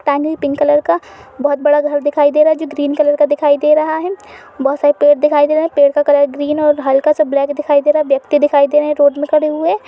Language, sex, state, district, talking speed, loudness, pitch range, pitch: Hindi, female, Uttar Pradesh, Budaun, 280 wpm, -13 LUFS, 285-300 Hz, 295 Hz